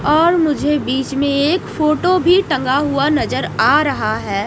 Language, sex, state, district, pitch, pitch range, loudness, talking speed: Hindi, female, Odisha, Nuapada, 295 Hz, 280-330 Hz, -15 LUFS, 175 wpm